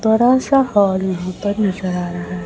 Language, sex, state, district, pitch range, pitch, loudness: Hindi, female, Chhattisgarh, Raipur, 185-220 Hz, 195 Hz, -17 LUFS